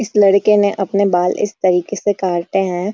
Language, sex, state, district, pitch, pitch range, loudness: Hindi, female, Uttarakhand, Uttarkashi, 195 Hz, 185-205 Hz, -15 LUFS